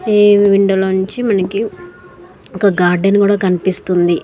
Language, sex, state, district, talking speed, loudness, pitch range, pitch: Telugu, female, Andhra Pradesh, Srikakulam, 115 wpm, -13 LUFS, 180-200 Hz, 190 Hz